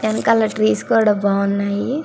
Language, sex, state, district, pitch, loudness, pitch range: Telugu, female, Andhra Pradesh, Krishna, 215 Hz, -17 LUFS, 200-220 Hz